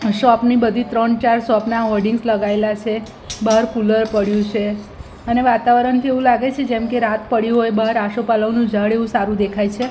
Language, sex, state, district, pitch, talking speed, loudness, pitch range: Gujarati, female, Gujarat, Gandhinagar, 230 Hz, 180 wpm, -17 LUFS, 215-235 Hz